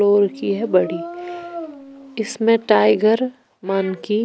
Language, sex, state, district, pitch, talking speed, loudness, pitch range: Hindi, female, Punjab, Pathankot, 225 Hz, 115 wpm, -19 LUFS, 200-275 Hz